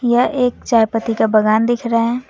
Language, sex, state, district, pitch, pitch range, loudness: Hindi, female, West Bengal, Alipurduar, 230 Hz, 225-240 Hz, -16 LUFS